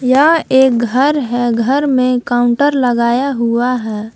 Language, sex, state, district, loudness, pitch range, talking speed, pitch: Hindi, female, Jharkhand, Palamu, -13 LUFS, 240-270 Hz, 145 wpm, 250 Hz